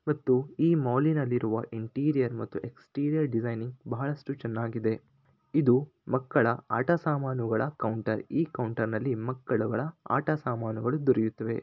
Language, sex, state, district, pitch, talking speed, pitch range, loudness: Kannada, male, Karnataka, Shimoga, 125 Hz, 105 wpm, 115-145 Hz, -29 LUFS